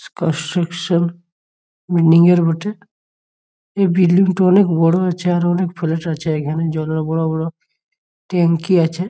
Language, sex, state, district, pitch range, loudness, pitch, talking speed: Bengali, male, West Bengal, Jhargram, 165-180 Hz, -16 LUFS, 170 Hz, 160 wpm